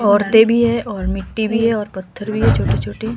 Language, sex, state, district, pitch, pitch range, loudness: Hindi, female, Himachal Pradesh, Shimla, 210 Hz, 190-225 Hz, -16 LUFS